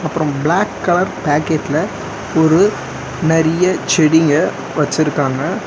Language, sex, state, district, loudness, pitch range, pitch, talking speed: Tamil, male, Tamil Nadu, Chennai, -15 LUFS, 150-165 Hz, 160 Hz, 85 wpm